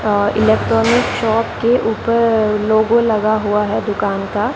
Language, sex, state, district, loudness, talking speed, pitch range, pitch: Hindi, female, Rajasthan, Bikaner, -15 LUFS, 145 wpm, 210-230 Hz, 220 Hz